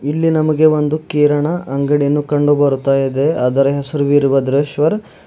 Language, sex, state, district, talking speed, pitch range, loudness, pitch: Kannada, male, Karnataka, Bidar, 125 wpm, 140-155 Hz, -15 LUFS, 145 Hz